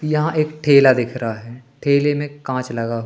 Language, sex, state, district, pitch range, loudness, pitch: Hindi, male, Madhya Pradesh, Katni, 120-145 Hz, -18 LUFS, 135 Hz